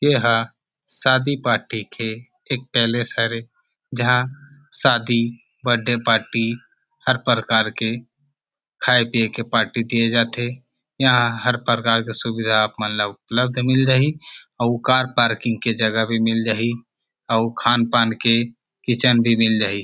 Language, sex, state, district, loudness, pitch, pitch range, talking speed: Chhattisgarhi, male, Chhattisgarh, Rajnandgaon, -19 LUFS, 120 Hz, 115-125 Hz, 140 wpm